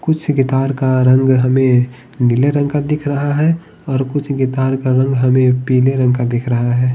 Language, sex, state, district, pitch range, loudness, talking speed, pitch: Hindi, male, Bihar, Patna, 125-140 Hz, -15 LUFS, 200 wpm, 130 Hz